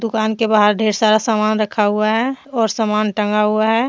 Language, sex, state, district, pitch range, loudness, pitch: Hindi, female, Jharkhand, Deoghar, 215-225 Hz, -16 LUFS, 215 Hz